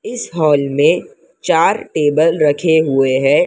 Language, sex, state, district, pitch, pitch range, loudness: Hindi, female, Maharashtra, Mumbai Suburban, 150 Hz, 140-160 Hz, -14 LUFS